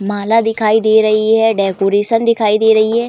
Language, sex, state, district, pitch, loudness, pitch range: Hindi, female, Uttar Pradesh, Varanasi, 220 Hz, -12 LUFS, 210-225 Hz